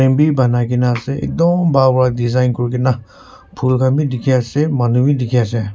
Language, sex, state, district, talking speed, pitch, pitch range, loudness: Nagamese, male, Nagaland, Kohima, 200 wpm, 130 Hz, 120-135 Hz, -15 LUFS